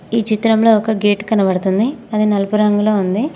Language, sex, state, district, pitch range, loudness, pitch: Telugu, female, Telangana, Mahabubabad, 205-225 Hz, -15 LUFS, 215 Hz